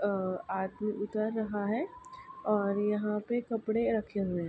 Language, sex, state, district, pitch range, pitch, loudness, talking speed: Hindi, female, Uttar Pradesh, Ghazipur, 200-225 Hz, 210 Hz, -33 LUFS, 160 wpm